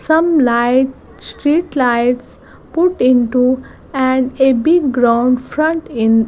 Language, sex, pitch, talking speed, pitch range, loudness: English, female, 260 Hz, 125 wpm, 245-310 Hz, -14 LUFS